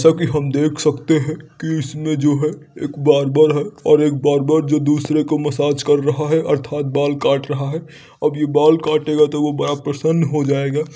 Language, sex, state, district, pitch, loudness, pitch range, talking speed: Hindi, male, Uttar Pradesh, Varanasi, 150 Hz, -17 LUFS, 145-155 Hz, 210 wpm